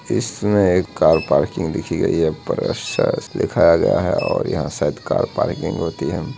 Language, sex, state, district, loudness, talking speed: Hindi, male, Bihar, Madhepura, -19 LUFS, 170 wpm